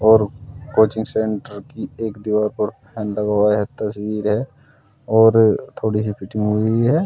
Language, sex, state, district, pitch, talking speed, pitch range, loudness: Hindi, male, Uttar Pradesh, Saharanpur, 110 Hz, 160 wpm, 105-110 Hz, -19 LUFS